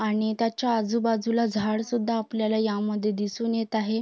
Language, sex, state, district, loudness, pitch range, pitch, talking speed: Marathi, female, Maharashtra, Sindhudurg, -26 LUFS, 215-230 Hz, 220 Hz, 165 wpm